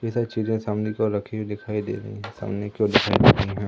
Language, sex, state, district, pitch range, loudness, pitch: Hindi, male, Madhya Pradesh, Umaria, 105-115 Hz, -23 LUFS, 105 Hz